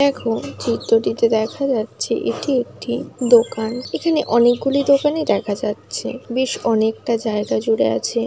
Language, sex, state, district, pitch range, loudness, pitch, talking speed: Bengali, female, West Bengal, Jalpaiguri, 225-275 Hz, -19 LUFS, 240 Hz, 125 wpm